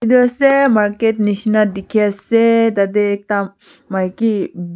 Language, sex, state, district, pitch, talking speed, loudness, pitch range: Nagamese, female, Nagaland, Kohima, 210 Hz, 115 wpm, -15 LUFS, 200-230 Hz